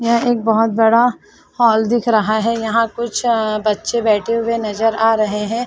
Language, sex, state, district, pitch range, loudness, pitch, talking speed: Hindi, female, Uttar Pradesh, Jalaun, 220-235 Hz, -16 LUFS, 225 Hz, 180 wpm